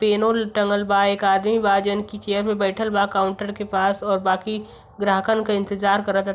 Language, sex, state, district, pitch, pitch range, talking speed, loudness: Bhojpuri, female, Uttar Pradesh, Varanasi, 205 Hz, 195-210 Hz, 210 wpm, -21 LUFS